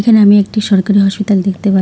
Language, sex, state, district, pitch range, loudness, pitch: Bengali, female, West Bengal, Alipurduar, 195-210 Hz, -11 LUFS, 205 Hz